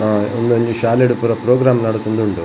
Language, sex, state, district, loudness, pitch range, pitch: Tulu, male, Karnataka, Dakshina Kannada, -16 LUFS, 110-120 Hz, 115 Hz